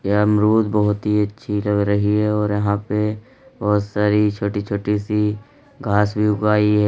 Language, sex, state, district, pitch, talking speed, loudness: Hindi, male, Uttar Pradesh, Lalitpur, 105 Hz, 175 wpm, -19 LUFS